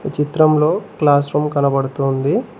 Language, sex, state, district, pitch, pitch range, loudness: Telugu, male, Telangana, Mahabubabad, 145 Hz, 140-150 Hz, -16 LUFS